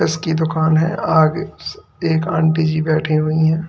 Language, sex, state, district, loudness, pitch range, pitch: Hindi, male, Uttar Pradesh, Lalitpur, -17 LUFS, 155-160 Hz, 160 Hz